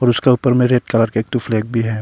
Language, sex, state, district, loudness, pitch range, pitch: Hindi, male, Arunachal Pradesh, Longding, -16 LUFS, 110-125 Hz, 120 Hz